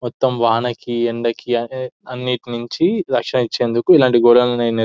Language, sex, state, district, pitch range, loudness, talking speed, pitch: Telugu, male, Telangana, Nalgonda, 120-125 Hz, -17 LUFS, 150 wpm, 120 Hz